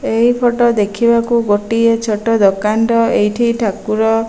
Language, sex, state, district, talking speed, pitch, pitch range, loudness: Odia, female, Odisha, Malkangiri, 140 wpm, 225 Hz, 210-235 Hz, -14 LUFS